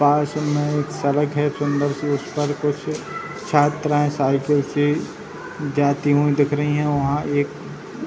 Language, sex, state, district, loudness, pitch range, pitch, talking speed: Hindi, male, Bihar, Saran, -21 LUFS, 145-150 Hz, 145 Hz, 155 wpm